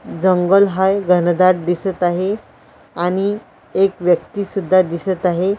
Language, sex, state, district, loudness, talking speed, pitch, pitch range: Marathi, female, Maharashtra, Washim, -17 LUFS, 120 wpm, 185 Hz, 180-195 Hz